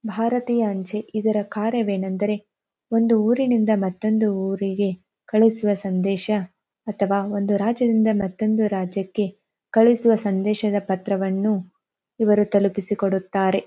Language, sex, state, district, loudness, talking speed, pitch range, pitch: Kannada, female, Karnataka, Dharwad, -21 LUFS, 90 wpm, 195-220 Hz, 205 Hz